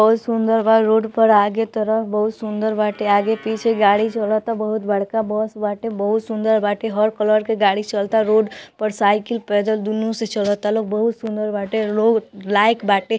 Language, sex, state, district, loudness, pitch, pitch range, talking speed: Bhojpuri, female, Bihar, East Champaran, -19 LUFS, 215 Hz, 210-225 Hz, 180 wpm